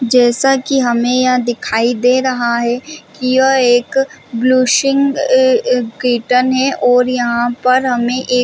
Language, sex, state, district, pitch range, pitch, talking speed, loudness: Hindi, female, Chhattisgarh, Bastar, 245-265 Hz, 250 Hz, 130 wpm, -13 LUFS